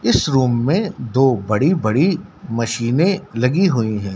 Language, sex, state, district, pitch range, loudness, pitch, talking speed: Hindi, male, Madhya Pradesh, Dhar, 115-170 Hz, -18 LUFS, 125 Hz, 145 wpm